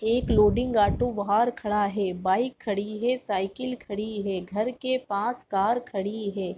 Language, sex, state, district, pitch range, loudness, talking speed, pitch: Hindi, female, Chhattisgarh, Raigarh, 200-245 Hz, -26 LUFS, 165 wpm, 210 Hz